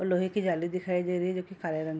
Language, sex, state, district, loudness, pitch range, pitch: Hindi, female, Bihar, Araria, -30 LUFS, 170-185 Hz, 180 Hz